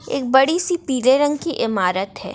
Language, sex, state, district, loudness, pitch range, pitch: Hindi, female, Maharashtra, Chandrapur, -18 LUFS, 195-295 Hz, 265 Hz